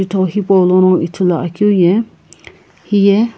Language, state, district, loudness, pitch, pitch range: Sumi, Nagaland, Kohima, -13 LUFS, 190 Hz, 180-205 Hz